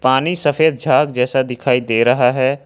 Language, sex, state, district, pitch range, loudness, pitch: Hindi, male, Jharkhand, Ranchi, 125-145 Hz, -15 LUFS, 130 Hz